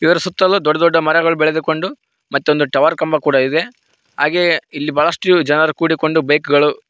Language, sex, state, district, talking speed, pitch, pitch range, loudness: Kannada, male, Karnataka, Koppal, 155 wpm, 160 Hz, 150-170 Hz, -15 LUFS